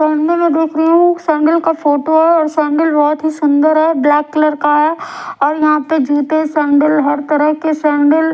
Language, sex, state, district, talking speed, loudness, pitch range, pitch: Hindi, female, Odisha, Sambalpur, 200 wpm, -13 LUFS, 295-320 Hz, 305 Hz